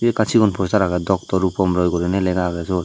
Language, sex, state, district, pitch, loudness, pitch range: Chakma, male, Tripura, Dhalai, 95 Hz, -19 LUFS, 90-95 Hz